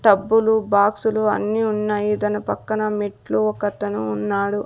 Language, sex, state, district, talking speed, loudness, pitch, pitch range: Telugu, female, Andhra Pradesh, Sri Satya Sai, 115 wpm, -20 LUFS, 210 Hz, 205-215 Hz